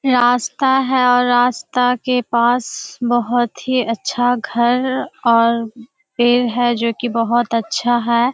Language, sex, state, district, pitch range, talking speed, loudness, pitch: Hindi, female, Bihar, Kishanganj, 235-250 Hz, 130 wpm, -16 LUFS, 245 Hz